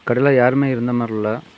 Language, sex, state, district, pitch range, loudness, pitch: Tamil, male, Tamil Nadu, Kanyakumari, 120-135 Hz, -17 LUFS, 125 Hz